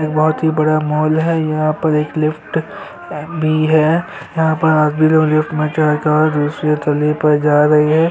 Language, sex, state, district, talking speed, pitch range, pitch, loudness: Hindi, male, Chhattisgarh, Sukma, 205 wpm, 150-155 Hz, 155 Hz, -15 LUFS